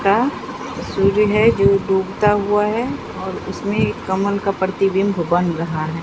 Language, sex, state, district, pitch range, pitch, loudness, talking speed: Hindi, female, Bihar, Katihar, 190-210 Hz, 200 Hz, -18 LUFS, 160 wpm